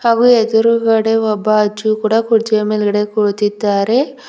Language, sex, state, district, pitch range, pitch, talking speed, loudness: Kannada, female, Karnataka, Bidar, 210-225 Hz, 215 Hz, 100 wpm, -14 LUFS